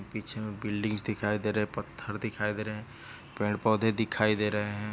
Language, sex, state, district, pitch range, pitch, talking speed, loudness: Hindi, male, Maharashtra, Dhule, 105-110 Hz, 105 Hz, 185 wpm, -31 LUFS